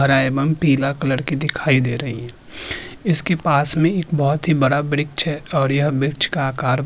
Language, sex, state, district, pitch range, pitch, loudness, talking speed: Hindi, male, Uttarakhand, Tehri Garhwal, 135-155 Hz, 145 Hz, -19 LUFS, 210 wpm